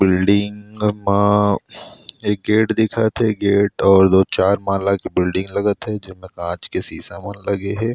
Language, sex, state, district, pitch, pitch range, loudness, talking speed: Chhattisgarhi, male, Chhattisgarh, Rajnandgaon, 100 Hz, 95-105 Hz, -18 LUFS, 160 wpm